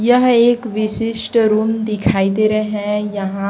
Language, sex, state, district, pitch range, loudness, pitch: Hindi, female, Chhattisgarh, Raipur, 210-225 Hz, -16 LUFS, 215 Hz